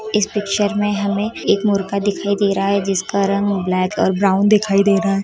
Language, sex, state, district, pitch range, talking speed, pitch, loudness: Hindi, female, Bihar, East Champaran, 195-205 Hz, 215 wpm, 200 Hz, -17 LUFS